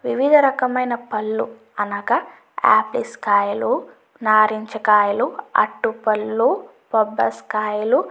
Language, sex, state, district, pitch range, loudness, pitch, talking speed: Telugu, female, Andhra Pradesh, Chittoor, 215-255 Hz, -19 LUFS, 220 Hz, 80 wpm